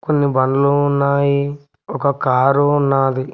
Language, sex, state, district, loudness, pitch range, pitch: Telugu, male, Telangana, Mahabubabad, -16 LUFS, 135-145 Hz, 140 Hz